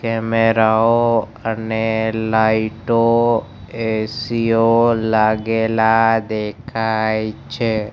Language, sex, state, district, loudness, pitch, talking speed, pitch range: Gujarati, male, Gujarat, Gandhinagar, -17 LUFS, 110 Hz, 60 wpm, 110-115 Hz